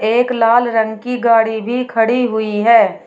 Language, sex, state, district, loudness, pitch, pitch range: Hindi, female, Uttar Pradesh, Shamli, -14 LUFS, 230 Hz, 220-245 Hz